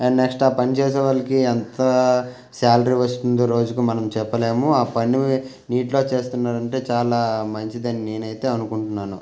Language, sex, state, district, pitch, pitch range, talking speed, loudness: Telugu, male, Telangana, Nalgonda, 120 Hz, 115-130 Hz, 125 wpm, -20 LUFS